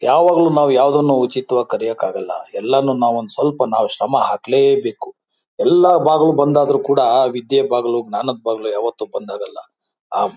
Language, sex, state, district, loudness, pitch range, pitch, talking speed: Kannada, male, Karnataka, Bijapur, -16 LUFS, 125-175 Hz, 140 Hz, 135 wpm